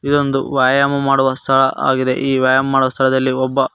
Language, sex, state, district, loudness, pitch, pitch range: Kannada, male, Karnataka, Koppal, -15 LUFS, 135 Hz, 130-135 Hz